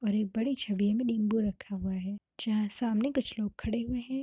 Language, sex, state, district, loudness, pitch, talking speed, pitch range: Hindi, female, Bihar, Darbhanga, -32 LUFS, 220 Hz, 225 wpm, 205-240 Hz